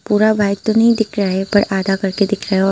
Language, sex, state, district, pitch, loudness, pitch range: Hindi, female, Tripura, Unakoti, 200 Hz, -16 LUFS, 195-215 Hz